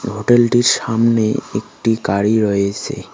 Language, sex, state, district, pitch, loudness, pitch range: Bengali, male, West Bengal, Cooch Behar, 110 Hz, -16 LUFS, 105-115 Hz